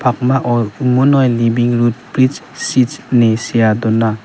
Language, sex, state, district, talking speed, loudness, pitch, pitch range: Garo, male, Meghalaya, West Garo Hills, 115 wpm, -14 LUFS, 120 Hz, 115-130 Hz